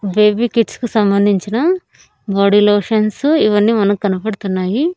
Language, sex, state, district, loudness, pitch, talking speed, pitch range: Telugu, female, Andhra Pradesh, Annamaya, -15 LUFS, 210 Hz, 110 wpm, 200-230 Hz